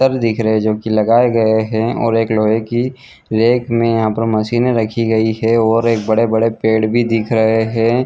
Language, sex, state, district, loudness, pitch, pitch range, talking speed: Hindi, male, Chhattisgarh, Bilaspur, -15 LUFS, 115 Hz, 110-115 Hz, 215 wpm